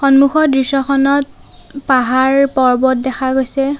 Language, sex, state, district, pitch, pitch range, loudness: Assamese, female, Assam, Sonitpur, 270 Hz, 260-275 Hz, -13 LUFS